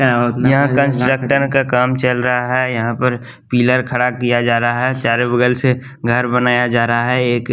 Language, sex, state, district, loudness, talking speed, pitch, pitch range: Hindi, male, Bihar, West Champaran, -15 LUFS, 190 wpm, 125 Hz, 120-130 Hz